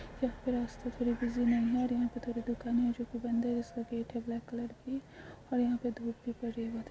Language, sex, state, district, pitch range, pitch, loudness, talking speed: Hindi, female, Telangana, Nalgonda, 235-245 Hz, 240 Hz, -35 LUFS, 260 wpm